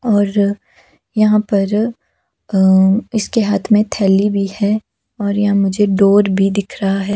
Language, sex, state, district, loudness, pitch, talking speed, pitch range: Hindi, female, Himachal Pradesh, Shimla, -15 LUFS, 205 Hz, 150 wpm, 195-210 Hz